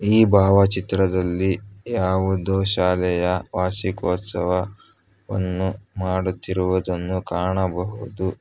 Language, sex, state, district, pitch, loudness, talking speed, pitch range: Kannada, male, Karnataka, Bangalore, 95 Hz, -22 LUFS, 65 wpm, 90-95 Hz